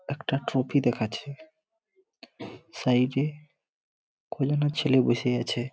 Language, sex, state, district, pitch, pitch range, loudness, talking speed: Bengali, male, West Bengal, Malda, 140 Hz, 125-150 Hz, -27 LUFS, 95 wpm